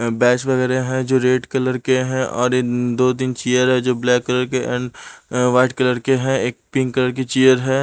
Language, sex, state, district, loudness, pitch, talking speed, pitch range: Hindi, male, Punjab, Pathankot, -18 LUFS, 125 Hz, 220 wpm, 125-130 Hz